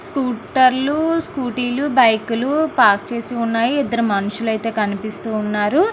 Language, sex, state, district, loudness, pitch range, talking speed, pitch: Telugu, female, Andhra Pradesh, Srikakulam, -18 LUFS, 220-275 Hz, 120 wpm, 240 Hz